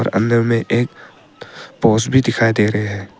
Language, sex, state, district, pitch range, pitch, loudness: Hindi, male, Arunachal Pradesh, Papum Pare, 105-115 Hz, 115 Hz, -16 LUFS